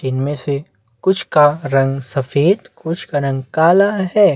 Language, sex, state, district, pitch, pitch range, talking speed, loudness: Hindi, male, Chhattisgarh, Bastar, 145 Hz, 135-180 Hz, 165 wpm, -16 LUFS